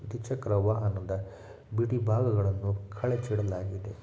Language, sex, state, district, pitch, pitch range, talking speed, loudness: Kannada, male, Karnataka, Shimoga, 105 Hz, 100-115 Hz, 90 wpm, -30 LUFS